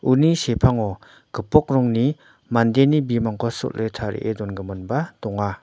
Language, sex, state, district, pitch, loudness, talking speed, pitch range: Garo, male, Meghalaya, North Garo Hills, 115 Hz, -21 LUFS, 105 wpm, 105-135 Hz